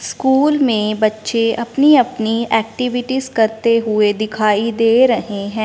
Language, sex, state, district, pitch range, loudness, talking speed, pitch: Hindi, female, Punjab, Fazilka, 215-250 Hz, -15 LUFS, 115 wpm, 230 Hz